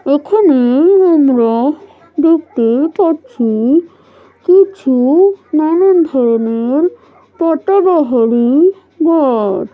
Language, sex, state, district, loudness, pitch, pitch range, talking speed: Bengali, female, West Bengal, Malda, -11 LUFS, 310 Hz, 250-360 Hz, 55 wpm